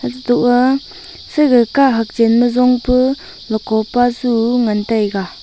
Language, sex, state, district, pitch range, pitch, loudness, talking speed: Wancho, female, Arunachal Pradesh, Longding, 225-255 Hz, 245 Hz, -14 LUFS, 145 wpm